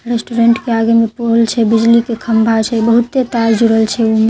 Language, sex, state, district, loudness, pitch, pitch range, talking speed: Maithili, female, Bihar, Katihar, -12 LUFS, 230 Hz, 225-235 Hz, 225 wpm